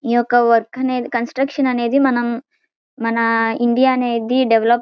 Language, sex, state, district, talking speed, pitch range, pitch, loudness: Telugu, female, Andhra Pradesh, Guntur, 150 wpm, 235-260 Hz, 240 Hz, -17 LUFS